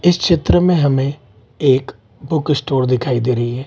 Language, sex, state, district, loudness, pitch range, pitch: Hindi, male, Bihar, Gaya, -16 LUFS, 125-155 Hz, 135 Hz